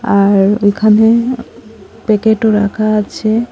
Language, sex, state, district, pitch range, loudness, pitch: Bengali, female, Assam, Hailakandi, 205-225 Hz, -12 LUFS, 215 Hz